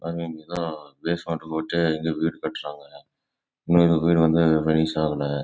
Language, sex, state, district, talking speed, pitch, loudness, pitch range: Tamil, male, Karnataka, Chamarajanagar, 45 wpm, 80 Hz, -23 LUFS, 80-85 Hz